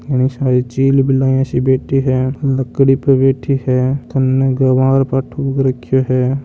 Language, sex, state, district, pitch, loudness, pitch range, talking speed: Marwari, male, Rajasthan, Nagaur, 130 Hz, -15 LUFS, 130-135 Hz, 150 wpm